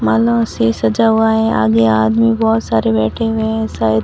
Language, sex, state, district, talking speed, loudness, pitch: Hindi, female, Rajasthan, Barmer, 195 wpm, -14 LUFS, 115 Hz